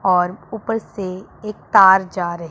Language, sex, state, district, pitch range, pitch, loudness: Hindi, female, Punjab, Pathankot, 180-210 Hz, 190 Hz, -17 LUFS